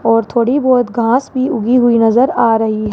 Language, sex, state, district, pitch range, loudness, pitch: Hindi, female, Rajasthan, Jaipur, 225-250 Hz, -13 LUFS, 235 Hz